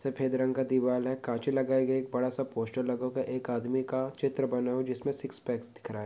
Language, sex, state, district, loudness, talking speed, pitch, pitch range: Hindi, male, Uttar Pradesh, Etah, -31 LUFS, 285 wpm, 130 Hz, 125-130 Hz